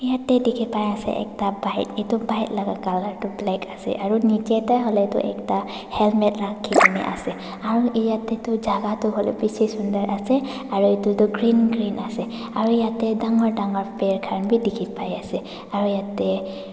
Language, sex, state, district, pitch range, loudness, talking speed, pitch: Nagamese, female, Nagaland, Dimapur, 200-230 Hz, -22 LUFS, 165 wpm, 215 Hz